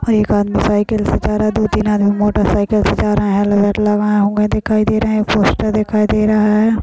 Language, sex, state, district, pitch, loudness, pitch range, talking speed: Hindi, female, Bihar, Madhepura, 210 Hz, -14 LUFS, 205-215 Hz, 210 wpm